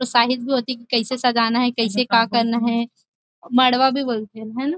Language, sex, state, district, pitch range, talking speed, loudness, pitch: Chhattisgarhi, female, Chhattisgarh, Rajnandgaon, 235-255 Hz, 200 wpm, -19 LUFS, 240 Hz